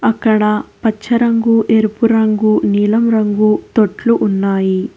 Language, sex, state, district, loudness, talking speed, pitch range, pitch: Telugu, female, Telangana, Hyderabad, -13 LUFS, 110 wpm, 210-230 Hz, 215 Hz